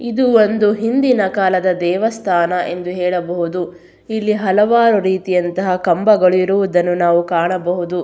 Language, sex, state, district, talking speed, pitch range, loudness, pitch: Kannada, female, Karnataka, Belgaum, 105 wpm, 175-215 Hz, -15 LUFS, 185 Hz